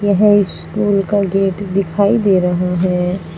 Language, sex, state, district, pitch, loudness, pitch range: Hindi, female, Uttar Pradesh, Saharanpur, 195 Hz, -15 LUFS, 180-205 Hz